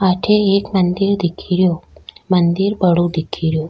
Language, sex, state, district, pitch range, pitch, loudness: Rajasthani, female, Rajasthan, Nagaur, 175-195 Hz, 180 Hz, -16 LUFS